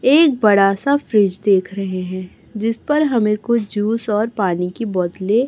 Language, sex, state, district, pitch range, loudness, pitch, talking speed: Hindi, male, Chhattisgarh, Raipur, 195-235 Hz, -17 LUFS, 210 Hz, 185 wpm